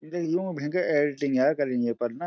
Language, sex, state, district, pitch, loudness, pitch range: Garhwali, male, Uttarakhand, Uttarkashi, 145 Hz, -26 LUFS, 130-175 Hz